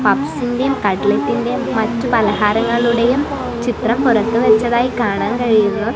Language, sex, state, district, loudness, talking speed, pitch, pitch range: Malayalam, female, Kerala, Kasaragod, -16 LUFS, 90 wpm, 235 Hz, 220-245 Hz